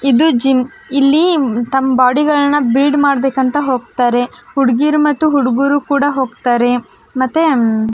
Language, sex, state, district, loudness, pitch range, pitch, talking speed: Kannada, female, Karnataka, Belgaum, -13 LUFS, 250-290 Hz, 270 Hz, 120 wpm